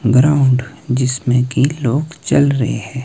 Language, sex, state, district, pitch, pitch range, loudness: Hindi, male, Himachal Pradesh, Shimla, 130 Hz, 125-140 Hz, -15 LUFS